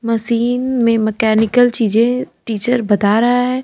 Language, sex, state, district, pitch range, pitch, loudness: Hindi, female, Uttar Pradesh, Lalitpur, 220-245 Hz, 230 Hz, -15 LUFS